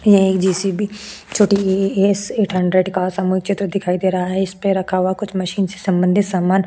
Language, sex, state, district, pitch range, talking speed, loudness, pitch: Hindi, female, Goa, North and South Goa, 185-200 Hz, 200 wpm, -18 LUFS, 190 Hz